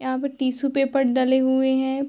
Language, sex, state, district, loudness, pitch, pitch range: Hindi, female, Bihar, Darbhanga, -21 LUFS, 265 Hz, 260-275 Hz